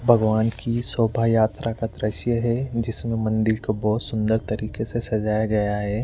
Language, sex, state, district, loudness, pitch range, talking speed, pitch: Hindi, male, Rajasthan, Jaipur, -23 LUFS, 110-115 Hz, 170 wpm, 110 Hz